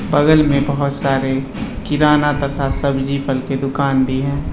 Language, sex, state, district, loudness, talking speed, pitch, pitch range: Hindi, male, Bihar, Bhagalpur, -17 LUFS, 315 wpm, 140 Hz, 135-145 Hz